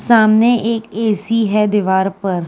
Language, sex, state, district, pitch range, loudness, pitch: Hindi, female, Uttar Pradesh, Jyotiba Phule Nagar, 195-230 Hz, -15 LUFS, 215 Hz